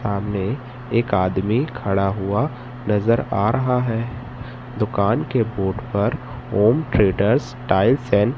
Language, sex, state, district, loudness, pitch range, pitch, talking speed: Hindi, male, Madhya Pradesh, Katni, -21 LUFS, 100-125 Hz, 115 Hz, 130 wpm